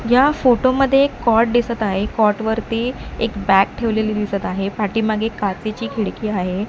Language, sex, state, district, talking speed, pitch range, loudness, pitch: Marathi, female, Maharashtra, Mumbai Suburban, 160 wpm, 210-235 Hz, -18 LUFS, 220 Hz